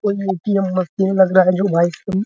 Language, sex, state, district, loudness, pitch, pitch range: Hindi, male, Bihar, Araria, -17 LUFS, 190 Hz, 185-195 Hz